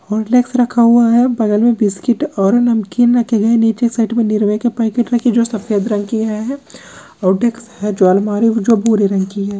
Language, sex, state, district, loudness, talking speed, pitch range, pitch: Hindi, female, Rajasthan, Churu, -14 LUFS, 185 wpm, 210-240 Hz, 225 Hz